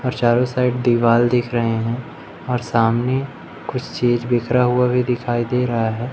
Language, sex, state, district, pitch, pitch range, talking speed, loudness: Hindi, male, Madhya Pradesh, Umaria, 120 Hz, 120-125 Hz, 175 wpm, -19 LUFS